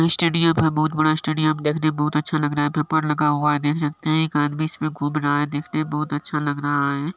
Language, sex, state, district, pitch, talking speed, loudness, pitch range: Maithili, male, Bihar, Supaul, 150 Hz, 285 wpm, -21 LUFS, 145-155 Hz